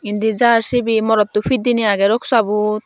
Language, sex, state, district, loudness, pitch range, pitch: Chakma, female, Tripura, Dhalai, -16 LUFS, 210-235 Hz, 220 Hz